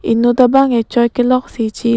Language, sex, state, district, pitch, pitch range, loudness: Karbi, female, Assam, Karbi Anglong, 240 Hz, 230-255 Hz, -13 LUFS